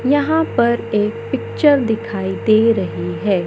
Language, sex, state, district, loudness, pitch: Hindi, male, Madhya Pradesh, Katni, -17 LUFS, 225 Hz